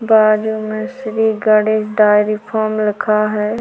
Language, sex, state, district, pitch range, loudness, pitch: Hindi, female, Chhattisgarh, Korba, 215-220 Hz, -15 LUFS, 215 Hz